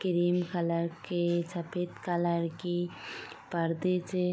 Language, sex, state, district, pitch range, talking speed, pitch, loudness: Hindi, female, Uttar Pradesh, Gorakhpur, 170-180 Hz, 125 wpm, 175 Hz, -32 LUFS